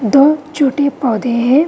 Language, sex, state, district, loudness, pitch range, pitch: Hindi, female, Bihar, Vaishali, -14 LUFS, 240-285 Hz, 275 Hz